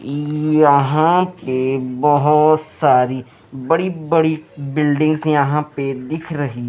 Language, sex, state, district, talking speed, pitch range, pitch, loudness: Hindi, male, Himachal Pradesh, Shimla, 100 wpm, 135-155 Hz, 150 Hz, -17 LUFS